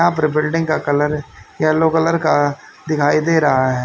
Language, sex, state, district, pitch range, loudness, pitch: Hindi, male, Haryana, Rohtak, 145-160 Hz, -17 LUFS, 155 Hz